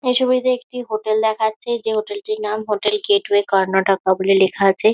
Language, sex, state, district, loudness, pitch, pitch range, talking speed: Bengali, female, West Bengal, Kolkata, -18 LUFS, 215 Hz, 195-220 Hz, 180 wpm